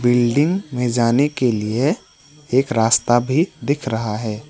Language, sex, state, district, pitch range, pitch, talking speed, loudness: Hindi, male, West Bengal, Alipurduar, 115-145 Hz, 125 Hz, 145 wpm, -19 LUFS